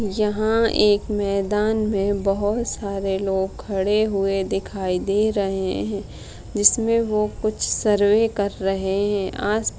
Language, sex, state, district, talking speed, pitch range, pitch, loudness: Hindi, female, Bihar, Madhepura, 135 wpm, 195-215 Hz, 205 Hz, -21 LUFS